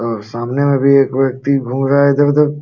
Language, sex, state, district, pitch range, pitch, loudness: Hindi, male, Uttar Pradesh, Jalaun, 130-140 Hz, 140 Hz, -14 LUFS